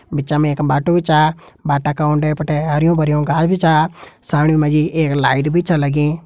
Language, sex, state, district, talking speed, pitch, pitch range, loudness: Hindi, male, Uttarakhand, Tehri Garhwal, 210 wpm, 150 Hz, 150-160 Hz, -16 LUFS